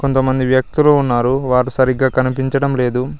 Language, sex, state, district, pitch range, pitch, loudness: Telugu, male, Telangana, Mahabubabad, 130-135 Hz, 130 Hz, -15 LUFS